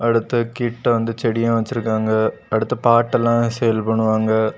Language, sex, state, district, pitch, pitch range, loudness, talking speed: Tamil, male, Tamil Nadu, Kanyakumari, 115 Hz, 110-115 Hz, -19 LUFS, 130 wpm